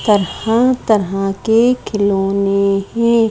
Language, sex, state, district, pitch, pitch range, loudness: Hindi, female, Madhya Pradesh, Bhopal, 210 Hz, 195-230 Hz, -15 LUFS